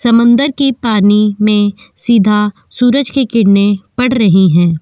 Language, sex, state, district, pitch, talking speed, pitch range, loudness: Hindi, female, Goa, North and South Goa, 215 Hz, 135 wpm, 205-245 Hz, -11 LUFS